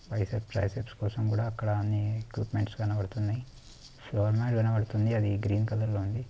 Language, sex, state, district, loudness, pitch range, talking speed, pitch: Telugu, male, Andhra Pradesh, Krishna, -30 LUFS, 105-115 Hz, 155 wpm, 110 Hz